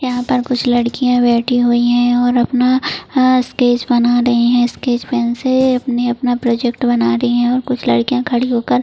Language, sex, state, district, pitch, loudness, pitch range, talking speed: Hindi, female, Jharkhand, Jamtara, 245 Hz, -14 LUFS, 240-250 Hz, 185 wpm